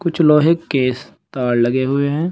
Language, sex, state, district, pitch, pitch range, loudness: Hindi, male, Uttar Pradesh, Saharanpur, 140 Hz, 125-165 Hz, -16 LUFS